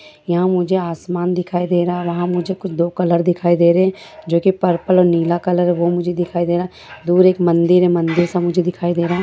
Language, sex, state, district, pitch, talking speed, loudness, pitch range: Hindi, female, Bihar, Jamui, 175 Hz, 235 wpm, -16 LUFS, 175-180 Hz